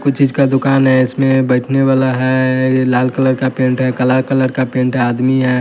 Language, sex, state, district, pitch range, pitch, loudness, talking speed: Hindi, male, Bihar, West Champaran, 130-135 Hz, 130 Hz, -13 LUFS, 235 wpm